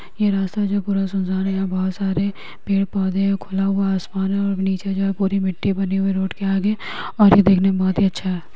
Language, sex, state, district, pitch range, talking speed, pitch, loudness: Magahi, female, Bihar, Gaya, 190-195 Hz, 225 wpm, 195 Hz, -20 LUFS